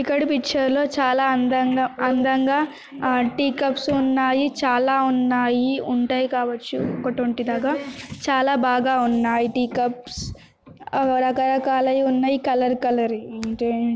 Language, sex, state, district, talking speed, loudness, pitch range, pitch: Telugu, female, Telangana, Nalgonda, 120 wpm, -21 LUFS, 245-270 Hz, 260 Hz